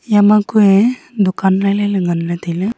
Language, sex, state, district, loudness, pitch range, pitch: Wancho, female, Arunachal Pradesh, Longding, -14 LUFS, 190-210 Hz, 200 Hz